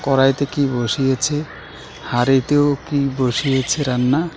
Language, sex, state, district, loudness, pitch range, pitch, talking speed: Bengali, male, West Bengal, Alipurduar, -18 LUFS, 130-145 Hz, 135 Hz, 95 wpm